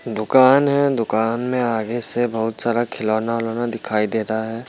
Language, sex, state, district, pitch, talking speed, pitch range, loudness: Hindi, male, Bihar, Muzaffarpur, 115 Hz, 165 wpm, 110-120 Hz, -19 LUFS